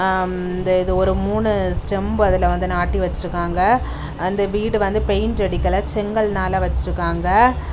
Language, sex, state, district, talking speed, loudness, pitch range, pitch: Tamil, female, Tamil Nadu, Kanyakumari, 115 wpm, -19 LUFS, 185-205 Hz, 190 Hz